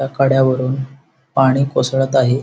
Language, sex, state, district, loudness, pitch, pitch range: Marathi, male, Maharashtra, Sindhudurg, -16 LUFS, 135 Hz, 130-135 Hz